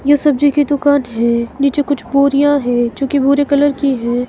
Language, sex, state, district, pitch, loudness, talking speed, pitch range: Hindi, female, Himachal Pradesh, Shimla, 280 Hz, -14 LUFS, 210 wpm, 250-285 Hz